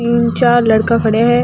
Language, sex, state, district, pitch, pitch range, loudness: Rajasthani, female, Rajasthan, Churu, 235 Hz, 225-240 Hz, -12 LUFS